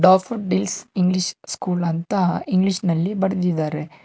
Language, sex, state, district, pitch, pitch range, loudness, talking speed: Kannada, male, Karnataka, Bangalore, 185 Hz, 175-190 Hz, -21 LUFS, 105 wpm